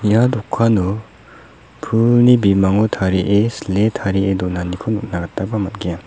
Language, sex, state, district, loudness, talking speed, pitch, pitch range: Garo, male, Meghalaya, South Garo Hills, -17 LUFS, 110 wpm, 100 Hz, 95-110 Hz